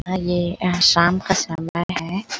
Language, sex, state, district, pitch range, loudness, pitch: Hindi, female, Chhattisgarh, Bilaspur, 170-185 Hz, -19 LUFS, 175 Hz